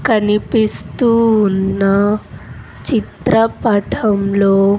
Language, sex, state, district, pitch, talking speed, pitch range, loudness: Telugu, female, Andhra Pradesh, Sri Satya Sai, 210 Hz, 40 wpm, 200-225 Hz, -15 LUFS